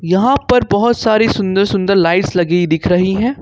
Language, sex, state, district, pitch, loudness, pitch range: Hindi, male, Jharkhand, Ranchi, 195 Hz, -13 LUFS, 180-225 Hz